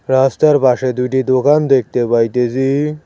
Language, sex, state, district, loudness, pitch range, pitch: Bengali, male, West Bengal, Cooch Behar, -14 LUFS, 125-140 Hz, 130 Hz